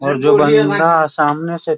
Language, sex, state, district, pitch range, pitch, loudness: Hindi, male, Bihar, Sitamarhi, 145-165 Hz, 155 Hz, -13 LUFS